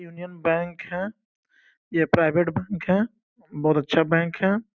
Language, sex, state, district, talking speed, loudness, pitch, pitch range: Hindi, male, Uttar Pradesh, Gorakhpur, 140 wpm, -24 LUFS, 175 Hz, 165-195 Hz